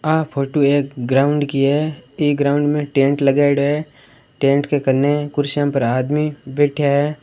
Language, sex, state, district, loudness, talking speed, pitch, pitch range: Marwari, male, Rajasthan, Churu, -17 LUFS, 165 wpm, 145 Hz, 140-145 Hz